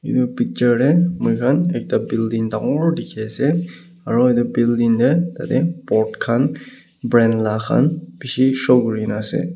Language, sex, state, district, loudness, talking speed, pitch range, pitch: Nagamese, male, Nagaland, Kohima, -18 LUFS, 150 wpm, 115-150 Hz, 125 Hz